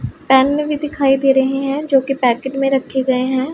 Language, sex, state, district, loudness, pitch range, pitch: Hindi, female, Punjab, Pathankot, -16 LUFS, 265-275 Hz, 270 Hz